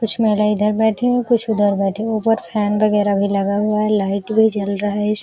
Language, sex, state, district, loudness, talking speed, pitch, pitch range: Hindi, female, Uttar Pradesh, Jalaun, -17 LUFS, 240 wpm, 210 Hz, 205-220 Hz